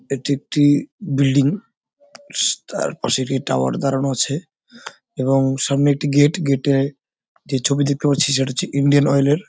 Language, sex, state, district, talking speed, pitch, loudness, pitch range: Bengali, male, West Bengal, Jalpaiguri, 150 wpm, 140 Hz, -19 LUFS, 135-145 Hz